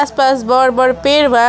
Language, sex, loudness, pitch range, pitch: Bhojpuri, female, -12 LUFS, 255-280 Hz, 260 Hz